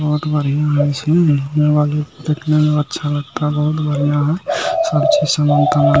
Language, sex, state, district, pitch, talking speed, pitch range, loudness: Hindi, male, Bihar, Bhagalpur, 150 Hz, 80 wpm, 145-150 Hz, -16 LUFS